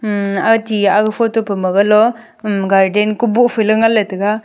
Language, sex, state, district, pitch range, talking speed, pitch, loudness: Wancho, female, Arunachal Pradesh, Longding, 200-225 Hz, 160 wpm, 215 Hz, -14 LUFS